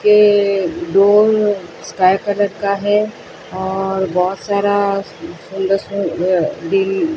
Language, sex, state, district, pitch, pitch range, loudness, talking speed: Hindi, female, Odisha, Sambalpur, 200 Hz, 190-205 Hz, -16 LUFS, 100 wpm